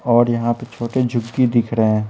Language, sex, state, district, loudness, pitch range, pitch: Hindi, male, Bihar, Patna, -18 LUFS, 115-120 Hz, 120 Hz